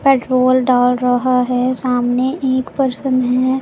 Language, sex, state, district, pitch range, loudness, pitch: Hindi, female, Punjab, Pathankot, 250-260 Hz, -15 LUFS, 255 Hz